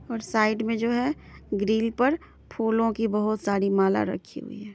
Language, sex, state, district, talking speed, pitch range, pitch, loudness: Hindi, female, Bihar, Madhepura, 215 wpm, 210-230 Hz, 225 Hz, -25 LUFS